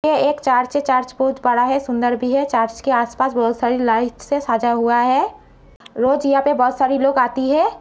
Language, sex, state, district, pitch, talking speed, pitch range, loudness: Hindi, female, Uttar Pradesh, Gorakhpur, 255 Hz, 215 wpm, 240-275 Hz, -18 LUFS